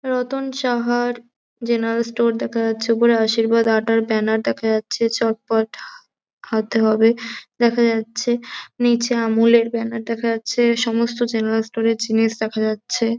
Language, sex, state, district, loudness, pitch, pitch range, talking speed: Bengali, female, West Bengal, Jhargram, -19 LUFS, 230 Hz, 225-235 Hz, 135 wpm